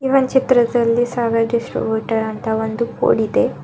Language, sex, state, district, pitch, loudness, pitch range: Kannada, female, Karnataka, Bidar, 235 Hz, -18 LUFS, 225-245 Hz